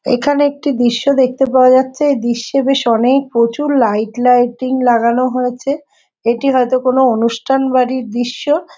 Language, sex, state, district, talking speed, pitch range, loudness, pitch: Bengali, female, West Bengal, Jhargram, 150 wpm, 240-275 Hz, -14 LUFS, 255 Hz